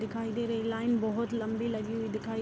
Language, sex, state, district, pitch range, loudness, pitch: Hindi, female, Bihar, Darbhanga, 220-230 Hz, -32 LUFS, 225 Hz